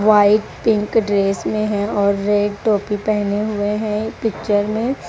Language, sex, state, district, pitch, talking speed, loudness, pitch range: Hindi, female, Haryana, Rohtak, 210 Hz, 155 wpm, -18 LUFS, 205-215 Hz